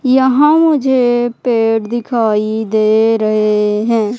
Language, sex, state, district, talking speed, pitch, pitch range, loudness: Hindi, female, Madhya Pradesh, Umaria, 100 wpm, 225 Hz, 215-255 Hz, -13 LUFS